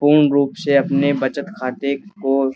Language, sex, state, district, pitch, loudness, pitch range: Hindi, male, Uttar Pradesh, Budaun, 140 Hz, -18 LUFS, 135-145 Hz